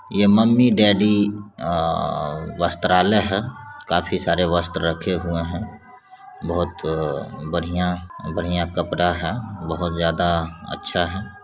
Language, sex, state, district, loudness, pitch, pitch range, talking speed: Hindi, male, Bihar, Saran, -21 LUFS, 90 Hz, 85-105 Hz, 125 wpm